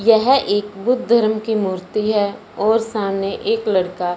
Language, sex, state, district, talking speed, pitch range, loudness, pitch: Hindi, male, Punjab, Fazilka, 160 wpm, 195-225 Hz, -18 LUFS, 210 Hz